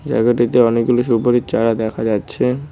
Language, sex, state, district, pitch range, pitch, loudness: Bengali, male, West Bengal, Cooch Behar, 115-120 Hz, 120 Hz, -16 LUFS